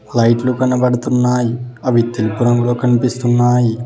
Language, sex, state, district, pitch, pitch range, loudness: Telugu, male, Telangana, Hyderabad, 120 Hz, 120-125 Hz, -15 LUFS